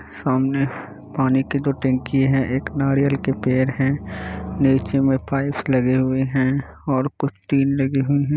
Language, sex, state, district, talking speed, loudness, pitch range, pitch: Hindi, male, Bihar, Kishanganj, 165 wpm, -21 LUFS, 130-140 Hz, 135 Hz